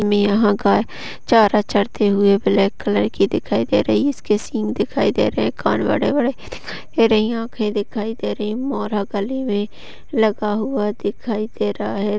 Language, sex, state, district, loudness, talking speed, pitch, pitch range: Hindi, female, Maharashtra, Sindhudurg, -19 LUFS, 160 wpm, 210 Hz, 205-225 Hz